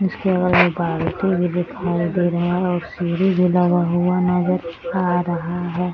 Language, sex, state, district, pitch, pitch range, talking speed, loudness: Hindi, female, Bihar, Gaya, 175 Hz, 175-180 Hz, 160 wpm, -19 LUFS